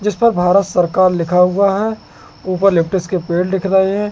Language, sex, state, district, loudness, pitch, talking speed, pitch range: Hindi, male, Madhya Pradesh, Katni, -15 LUFS, 185 Hz, 205 wpm, 180-195 Hz